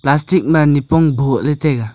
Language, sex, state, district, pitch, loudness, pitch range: Wancho, male, Arunachal Pradesh, Longding, 150 Hz, -14 LUFS, 135-155 Hz